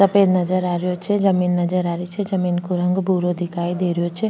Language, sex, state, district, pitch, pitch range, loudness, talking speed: Rajasthani, female, Rajasthan, Nagaur, 180 Hz, 175-190 Hz, -20 LUFS, 250 wpm